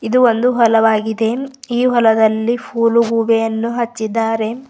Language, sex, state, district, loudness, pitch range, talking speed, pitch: Kannada, female, Karnataka, Bidar, -15 LUFS, 225-240 Hz, 100 wpm, 230 Hz